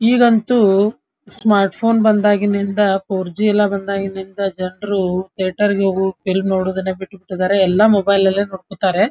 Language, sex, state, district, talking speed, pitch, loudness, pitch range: Kannada, female, Karnataka, Dharwad, 120 wpm, 195 Hz, -16 LUFS, 190-205 Hz